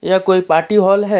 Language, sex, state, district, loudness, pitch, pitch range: Hindi, male, Jharkhand, Deoghar, -13 LUFS, 190 Hz, 185-200 Hz